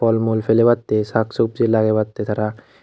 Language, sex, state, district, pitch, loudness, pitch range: Chakma, male, Tripura, Unakoti, 110 Hz, -18 LUFS, 110-115 Hz